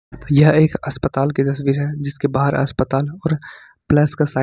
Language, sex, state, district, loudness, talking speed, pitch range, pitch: Hindi, male, Jharkhand, Ranchi, -18 LUFS, 190 wpm, 135-150 Hz, 140 Hz